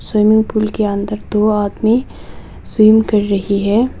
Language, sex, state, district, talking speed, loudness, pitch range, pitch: Hindi, female, Nagaland, Kohima, 150 wpm, -14 LUFS, 205-220 Hz, 210 Hz